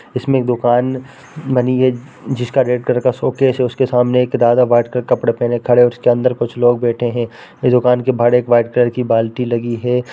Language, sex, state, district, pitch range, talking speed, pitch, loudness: Hindi, female, Bihar, Darbhanga, 120-125 Hz, 225 wpm, 125 Hz, -15 LUFS